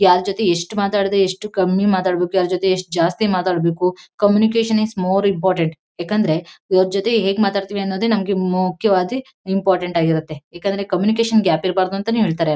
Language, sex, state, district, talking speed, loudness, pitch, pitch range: Kannada, female, Karnataka, Mysore, 155 wpm, -18 LUFS, 190 Hz, 180-205 Hz